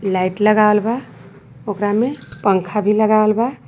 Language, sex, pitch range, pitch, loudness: Sadri, female, 205-220 Hz, 210 Hz, -17 LUFS